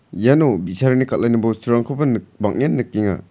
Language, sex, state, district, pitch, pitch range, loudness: Garo, male, Meghalaya, South Garo Hills, 120 Hz, 105-130 Hz, -18 LUFS